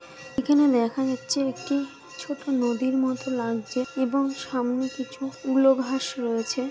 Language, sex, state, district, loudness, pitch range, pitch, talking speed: Bengali, female, West Bengal, Jalpaiguri, -25 LUFS, 250-270 Hz, 265 Hz, 125 wpm